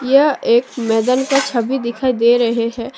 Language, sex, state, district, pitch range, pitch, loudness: Hindi, female, Assam, Sonitpur, 235-265 Hz, 240 Hz, -16 LUFS